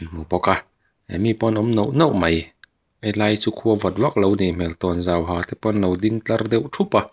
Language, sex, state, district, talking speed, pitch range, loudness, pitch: Mizo, male, Mizoram, Aizawl, 245 wpm, 90-110 Hz, -21 LUFS, 100 Hz